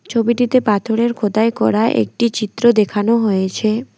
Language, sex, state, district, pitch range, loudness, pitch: Bengali, female, West Bengal, Alipurduar, 215-235 Hz, -16 LUFS, 225 Hz